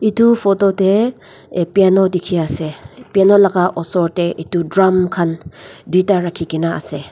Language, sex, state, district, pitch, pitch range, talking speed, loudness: Nagamese, female, Nagaland, Dimapur, 180 Hz, 165-195 Hz, 160 wpm, -15 LUFS